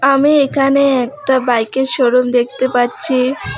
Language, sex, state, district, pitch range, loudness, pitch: Bengali, female, West Bengal, Alipurduar, 250-275 Hz, -14 LUFS, 260 Hz